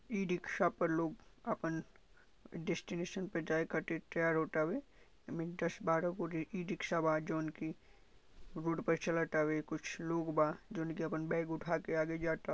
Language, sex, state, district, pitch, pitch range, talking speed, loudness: Bhojpuri, male, Uttar Pradesh, Gorakhpur, 165 Hz, 160-170 Hz, 160 wpm, -38 LUFS